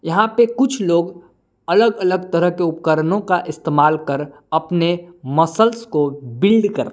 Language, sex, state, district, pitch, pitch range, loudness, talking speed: Hindi, male, Jharkhand, Palamu, 170 Hz, 155-200 Hz, -17 LUFS, 145 wpm